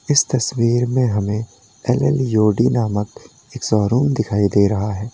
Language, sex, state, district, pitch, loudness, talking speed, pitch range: Hindi, male, Uttar Pradesh, Lalitpur, 115 Hz, -18 LUFS, 165 wpm, 105-125 Hz